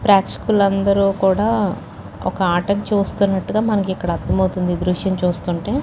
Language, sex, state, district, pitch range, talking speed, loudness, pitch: Telugu, female, Telangana, Nalgonda, 180-205 Hz, 125 wpm, -18 LUFS, 195 Hz